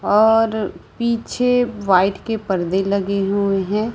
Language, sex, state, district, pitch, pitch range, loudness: Hindi, female, Chhattisgarh, Raipur, 210 Hz, 195-225 Hz, -19 LUFS